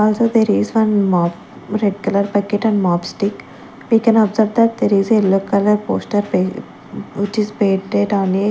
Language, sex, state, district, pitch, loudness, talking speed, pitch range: English, female, Chandigarh, Chandigarh, 205 Hz, -16 LUFS, 170 wpm, 195-220 Hz